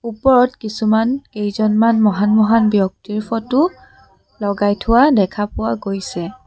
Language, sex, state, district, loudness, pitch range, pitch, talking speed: Assamese, female, Assam, Sonitpur, -16 LUFS, 205-230 Hz, 215 Hz, 110 wpm